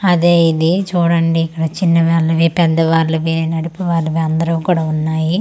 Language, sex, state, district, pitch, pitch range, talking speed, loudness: Telugu, female, Andhra Pradesh, Manyam, 165 Hz, 160-170 Hz, 155 wpm, -15 LUFS